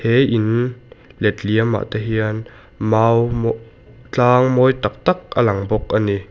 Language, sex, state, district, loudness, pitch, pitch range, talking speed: Mizo, male, Mizoram, Aizawl, -18 LUFS, 115 Hz, 110-125 Hz, 150 wpm